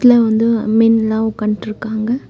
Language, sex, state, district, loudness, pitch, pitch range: Tamil, female, Tamil Nadu, Nilgiris, -15 LUFS, 220 Hz, 220-230 Hz